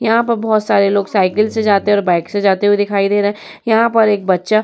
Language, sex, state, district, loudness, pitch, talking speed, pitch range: Hindi, female, Uttar Pradesh, Muzaffarnagar, -14 LUFS, 205 Hz, 285 wpm, 200-220 Hz